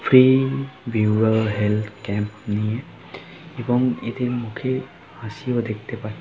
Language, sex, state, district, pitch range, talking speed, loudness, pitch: Bengali, male, West Bengal, Jhargram, 105-125 Hz, 115 wpm, -22 LUFS, 115 Hz